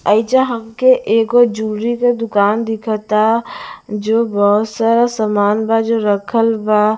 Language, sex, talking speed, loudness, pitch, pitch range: Bhojpuri, female, 130 wpm, -15 LUFS, 225 Hz, 215-230 Hz